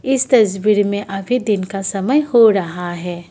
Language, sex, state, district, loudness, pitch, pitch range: Hindi, female, Assam, Kamrup Metropolitan, -16 LUFS, 205 Hz, 195-240 Hz